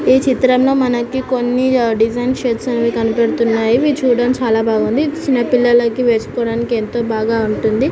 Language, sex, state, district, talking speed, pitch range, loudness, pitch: Telugu, female, Andhra Pradesh, Anantapur, 145 wpm, 230-255 Hz, -15 LUFS, 240 Hz